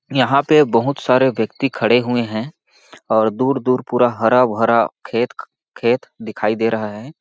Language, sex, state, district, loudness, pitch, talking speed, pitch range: Hindi, male, Chhattisgarh, Balrampur, -17 LUFS, 125 Hz, 175 wpm, 115-130 Hz